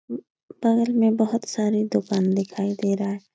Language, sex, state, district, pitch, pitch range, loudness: Hindi, female, Uttar Pradesh, Etah, 210 Hz, 200-225 Hz, -23 LUFS